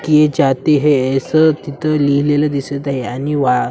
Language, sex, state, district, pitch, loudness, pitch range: Marathi, male, Maharashtra, Washim, 145 Hz, -15 LUFS, 135-150 Hz